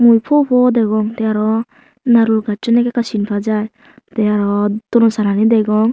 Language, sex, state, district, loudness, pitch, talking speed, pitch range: Chakma, female, Tripura, Unakoti, -15 LUFS, 225 Hz, 190 wpm, 215-240 Hz